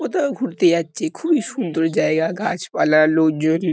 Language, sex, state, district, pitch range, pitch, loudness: Bengali, male, West Bengal, Kolkata, 160-260 Hz, 165 Hz, -19 LUFS